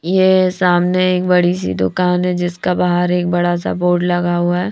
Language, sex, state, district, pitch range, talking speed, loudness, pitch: Hindi, female, Haryana, Rohtak, 175-180 Hz, 205 wpm, -15 LUFS, 180 Hz